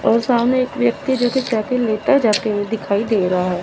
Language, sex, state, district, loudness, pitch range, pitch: Hindi, female, Chandigarh, Chandigarh, -18 LUFS, 210-250 Hz, 230 Hz